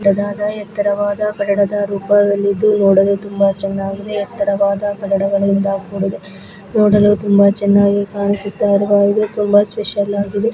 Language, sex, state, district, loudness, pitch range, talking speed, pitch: Kannada, female, Karnataka, Belgaum, -15 LUFS, 200-205 Hz, 95 wpm, 200 Hz